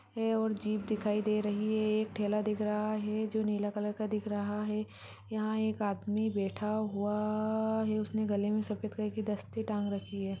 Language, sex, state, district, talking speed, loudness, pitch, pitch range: Hindi, female, Chhattisgarh, Sarguja, 210 wpm, -33 LUFS, 215 Hz, 210-215 Hz